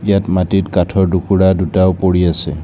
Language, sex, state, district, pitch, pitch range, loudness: Assamese, male, Assam, Kamrup Metropolitan, 95 Hz, 90-95 Hz, -14 LUFS